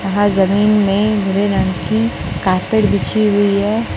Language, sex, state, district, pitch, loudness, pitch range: Hindi, male, Chhattisgarh, Raipur, 205 Hz, -15 LUFS, 195-215 Hz